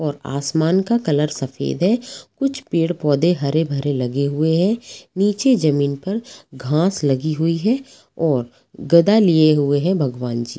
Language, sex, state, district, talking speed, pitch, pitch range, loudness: Hindi, female, Jharkhand, Sahebganj, 145 wpm, 160 Hz, 140-190 Hz, -19 LUFS